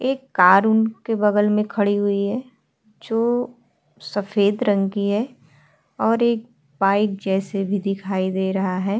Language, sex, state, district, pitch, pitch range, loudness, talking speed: Hindi, female, Uttar Pradesh, Etah, 205 Hz, 195-225 Hz, -20 LUFS, 145 wpm